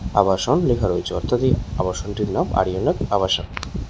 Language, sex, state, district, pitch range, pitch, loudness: Bengali, male, West Bengal, Jhargram, 95-120 Hz, 100 Hz, -21 LUFS